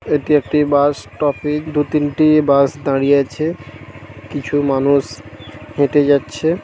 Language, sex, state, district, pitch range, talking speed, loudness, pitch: Bengali, male, West Bengal, Paschim Medinipur, 130-150 Hz, 135 wpm, -16 LUFS, 145 Hz